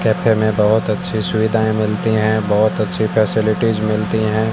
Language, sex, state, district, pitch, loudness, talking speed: Hindi, male, Rajasthan, Barmer, 110 Hz, -16 LUFS, 160 wpm